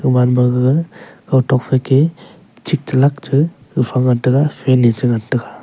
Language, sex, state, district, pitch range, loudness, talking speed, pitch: Wancho, male, Arunachal Pradesh, Longding, 125-145 Hz, -15 LUFS, 180 wpm, 130 Hz